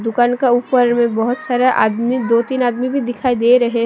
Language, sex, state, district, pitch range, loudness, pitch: Hindi, female, Assam, Sonitpur, 235-250 Hz, -15 LUFS, 245 Hz